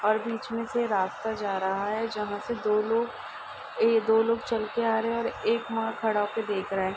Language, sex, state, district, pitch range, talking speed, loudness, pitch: Hindi, female, Uttar Pradesh, Ghazipur, 210-230 Hz, 240 wpm, -28 LUFS, 220 Hz